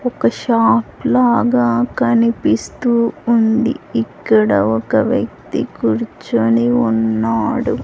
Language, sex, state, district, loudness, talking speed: Telugu, female, Andhra Pradesh, Sri Satya Sai, -16 LUFS, 75 wpm